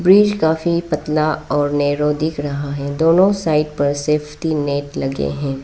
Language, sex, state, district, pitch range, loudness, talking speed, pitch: Hindi, female, Arunachal Pradesh, Lower Dibang Valley, 145-160 Hz, -18 LUFS, 160 wpm, 150 Hz